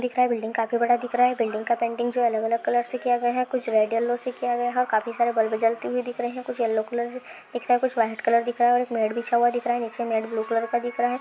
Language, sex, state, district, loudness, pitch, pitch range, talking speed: Hindi, female, Rajasthan, Churu, -24 LUFS, 240 Hz, 230-245 Hz, 325 wpm